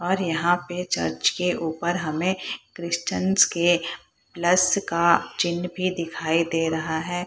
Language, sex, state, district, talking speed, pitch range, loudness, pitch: Hindi, female, Bihar, Purnia, 140 wpm, 160-180 Hz, -23 LUFS, 170 Hz